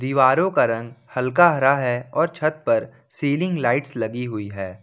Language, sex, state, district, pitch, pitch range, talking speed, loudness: Hindi, male, Jharkhand, Ranchi, 130 Hz, 120-155 Hz, 175 wpm, -21 LUFS